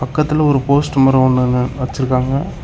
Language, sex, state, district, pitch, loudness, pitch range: Tamil, male, Tamil Nadu, Namakkal, 135 Hz, -15 LUFS, 130-145 Hz